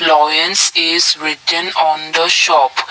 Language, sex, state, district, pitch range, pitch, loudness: English, male, Assam, Kamrup Metropolitan, 155-170 Hz, 160 Hz, -12 LUFS